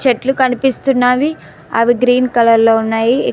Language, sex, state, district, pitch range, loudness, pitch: Telugu, female, Telangana, Mahabubabad, 230-260 Hz, -13 LUFS, 250 Hz